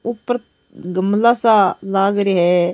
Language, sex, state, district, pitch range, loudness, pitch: Rajasthani, female, Rajasthan, Nagaur, 185-230 Hz, -16 LUFS, 200 Hz